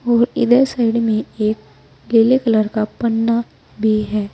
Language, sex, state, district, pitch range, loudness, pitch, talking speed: Hindi, female, Uttar Pradesh, Saharanpur, 215-235 Hz, -17 LUFS, 225 Hz, 150 wpm